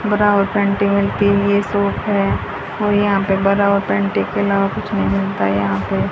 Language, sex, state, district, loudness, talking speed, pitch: Hindi, female, Haryana, Charkhi Dadri, -17 LUFS, 215 wpm, 200 Hz